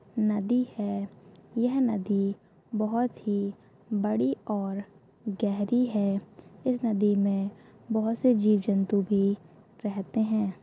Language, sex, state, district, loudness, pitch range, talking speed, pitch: Hindi, female, Chhattisgarh, Bastar, -28 LUFS, 200-225 Hz, 115 wpm, 210 Hz